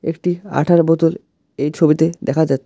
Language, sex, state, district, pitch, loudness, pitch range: Bengali, male, West Bengal, Alipurduar, 165 Hz, -16 LUFS, 155-175 Hz